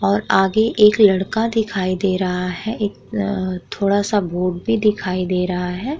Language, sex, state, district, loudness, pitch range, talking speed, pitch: Hindi, female, Uttar Pradesh, Muzaffarnagar, -18 LUFS, 180-215 Hz, 180 wpm, 195 Hz